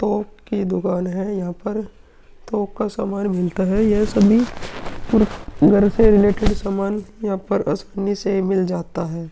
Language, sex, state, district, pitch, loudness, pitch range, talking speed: Hindi, male, Uttar Pradesh, Hamirpur, 200 Hz, -20 LUFS, 190-210 Hz, 160 wpm